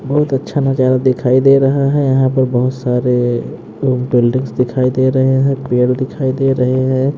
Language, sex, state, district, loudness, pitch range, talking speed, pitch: Hindi, male, Haryana, Jhajjar, -14 LUFS, 125-135 Hz, 185 wpm, 130 Hz